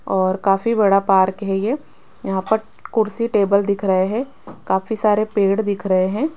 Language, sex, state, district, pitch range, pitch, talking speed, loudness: Hindi, female, Rajasthan, Jaipur, 195-220 Hz, 200 Hz, 180 wpm, -19 LUFS